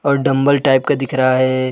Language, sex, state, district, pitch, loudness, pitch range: Hindi, male, Uttar Pradesh, Budaun, 135 Hz, -15 LUFS, 130-140 Hz